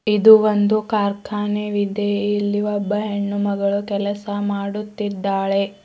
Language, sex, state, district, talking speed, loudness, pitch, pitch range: Kannada, female, Karnataka, Bidar, 80 wpm, -20 LUFS, 205 Hz, 200-210 Hz